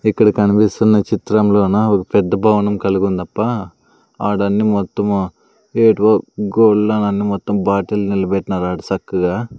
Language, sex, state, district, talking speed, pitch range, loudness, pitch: Telugu, male, Andhra Pradesh, Sri Satya Sai, 95 wpm, 100-110 Hz, -16 LUFS, 105 Hz